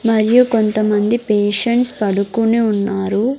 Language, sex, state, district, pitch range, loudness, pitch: Telugu, female, Andhra Pradesh, Sri Satya Sai, 205-230 Hz, -15 LUFS, 220 Hz